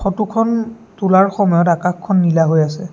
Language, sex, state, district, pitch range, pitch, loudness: Assamese, male, Assam, Sonitpur, 170-210 Hz, 190 Hz, -15 LUFS